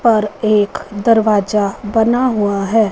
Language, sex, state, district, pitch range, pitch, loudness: Hindi, female, Punjab, Fazilka, 205-230 Hz, 215 Hz, -15 LUFS